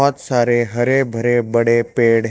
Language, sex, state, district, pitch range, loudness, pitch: Hindi, male, Chhattisgarh, Raipur, 115-125 Hz, -16 LUFS, 120 Hz